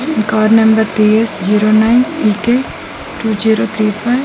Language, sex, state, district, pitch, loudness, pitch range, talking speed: Telugu, female, Andhra Pradesh, Manyam, 220 Hz, -12 LUFS, 215-230 Hz, 170 wpm